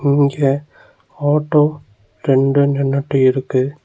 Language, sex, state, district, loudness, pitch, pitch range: Tamil, male, Tamil Nadu, Nilgiris, -16 LUFS, 140 Hz, 135-145 Hz